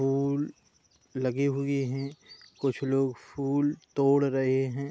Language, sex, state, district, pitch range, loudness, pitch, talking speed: Hindi, male, Uttar Pradesh, Budaun, 130-140 Hz, -29 LUFS, 135 Hz, 120 wpm